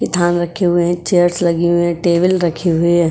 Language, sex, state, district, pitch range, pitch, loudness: Hindi, female, Uttar Pradesh, Etah, 170-175 Hz, 175 Hz, -15 LUFS